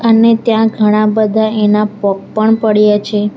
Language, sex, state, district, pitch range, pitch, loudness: Gujarati, female, Gujarat, Valsad, 210-220 Hz, 215 Hz, -12 LUFS